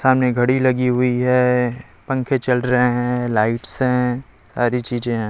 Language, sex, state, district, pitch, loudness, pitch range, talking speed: Hindi, male, Chhattisgarh, Raipur, 125 Hz, -19 LUFS, 120-125 Hz, 160 wpm